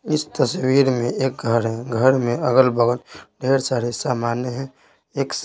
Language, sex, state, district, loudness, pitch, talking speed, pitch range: Hindi, male, Bihar, Patna, -20 LUFS, 125 Hz, 165 wpm, 120-135 Hz